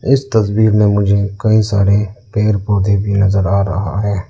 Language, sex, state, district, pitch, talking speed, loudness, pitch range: Hindi, male, Arunachal Pradesh, Lower Dibang Valley, 100 Hz, 180 wpm, -14 LUFS, 100-105 Hz